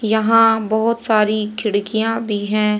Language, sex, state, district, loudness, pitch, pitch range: Hindi, female, Haryana, Jhajjar, -17 LUFS, 220 Hz, 210-225 Hz